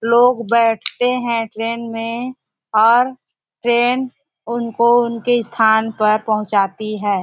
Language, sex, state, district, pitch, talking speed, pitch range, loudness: Hindi, female, Chhattisgarh, Bastar, 235 Hz, 110 wpm, 220-245 Hz, -17 LUFS